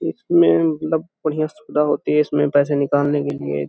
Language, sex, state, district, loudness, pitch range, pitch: Hindi, male, Uttar Pradesh, Hamirpur, -19 LUFS, 140-155 Hz, 145 Hz